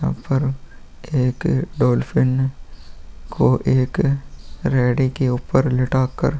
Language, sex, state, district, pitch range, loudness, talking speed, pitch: Hindi, male, Bihar, Vaishali, 125-135 Hz, -20 LUFS, 105 wpm, 130 Hz